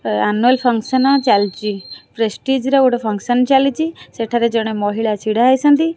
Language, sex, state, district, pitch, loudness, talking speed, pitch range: Odia, female, Odisha, Khordha, 240 Hz, -16 LUFS, 130 wpm, 215-265 Hz